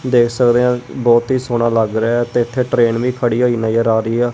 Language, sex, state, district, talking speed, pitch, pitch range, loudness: Punjabi, female, Punjab, Kapurthala, 260 wpm, 120 Hz, 115-125 Hz, -15 LUFS